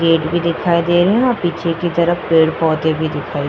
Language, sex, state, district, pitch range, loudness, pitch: Hindi, female, Uttar Pradesh, Jyotiba Phule Nagar, 160-175 Hz, -16 LUFS, 170 Hz